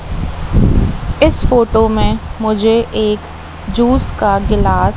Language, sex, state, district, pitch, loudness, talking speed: Hindi, female, Madhya Pradesh, Katni, 210 Hz, -14 LUFS, 95 wpm